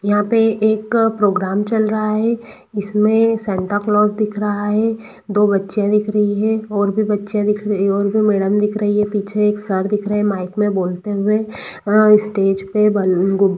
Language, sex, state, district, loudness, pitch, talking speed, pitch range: Hindi, female, Bihar, East Champaran, -17 LUFS, 210 Hz, 195 wpm, 205-215 Hz